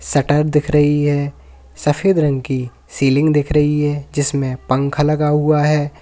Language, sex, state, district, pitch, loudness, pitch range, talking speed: Hindi, male, Uttar Pradesh, Lalitpur, 145 Hz, -16 LUFS, 140-150 Hz, 160 wpm